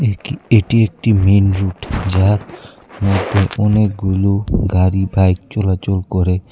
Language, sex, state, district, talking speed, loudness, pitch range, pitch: Bengali, male, Tripura, West Tripura, 110 wpm, -15 LUFS, 95-105 Hz, 100 Hz